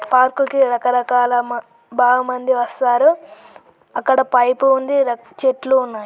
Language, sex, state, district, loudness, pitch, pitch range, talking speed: Telugu, male, Andhra Pradesh, Guntur, -17 LUFS, 255 Hz, 245-270 Hz, 120 wpm